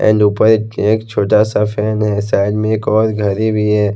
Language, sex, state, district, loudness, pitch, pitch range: Hindi, male, Haryana, Rohtak, -14 LUFS, 105 Hz, 105-110 Hz